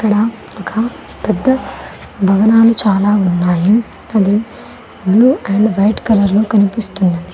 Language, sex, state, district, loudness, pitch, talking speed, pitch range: Telugu, female, Telangana, Mahabubabad, -13 LUFS, 210 Hz, 105 wpm, 195-225 Hz